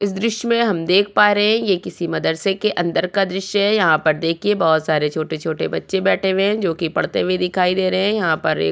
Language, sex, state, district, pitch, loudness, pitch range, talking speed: Hindi, female, Uttarakhand, Tehri Garhwal, 190 Hz, -18 LUFS, 165-205 Hz, 255 wpm